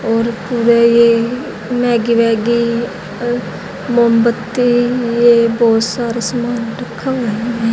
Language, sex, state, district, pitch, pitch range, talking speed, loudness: Hindi, female, Haryana, Jhajjar, 235 Hz, 230-240 Hz, 100 wpm, -14 LUFS